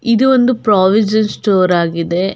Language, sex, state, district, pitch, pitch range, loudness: Kannada, female, Karnataka, Belgaum, 210 Hz, 185-230 Hz, -13 LUFS